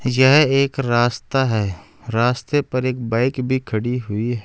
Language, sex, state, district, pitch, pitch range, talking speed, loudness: Hindi, male, Uttar Pradesh, Saharanpur, 125 Hz, 115-130 Hz, 160 wpm, -19 LUFS